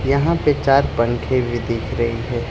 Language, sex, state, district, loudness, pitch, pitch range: Hindi, male, Arunachal Pradesh, Lower Dibang Valley, -19 LUFS, 120 Hz, 115-140 Hz